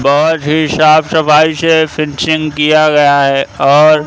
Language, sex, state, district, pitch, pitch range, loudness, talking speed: Hindi, male, Madhya Pradesh, Katni, 155 Hz, 150-155 Hz, -10 LUFS, 150 wpm